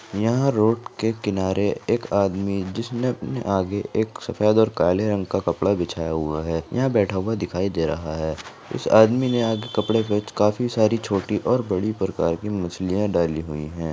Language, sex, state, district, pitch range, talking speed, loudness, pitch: Hindi, female, Rajasthan, Nagaur, 90-110 Hz, 180 wpm, -22 LUFS, 100 Hz